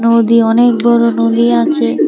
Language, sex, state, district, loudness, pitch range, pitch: Bengali, female, Tripura, West Tripura, -11 LUFS, 230-235 Hz, 230 Hz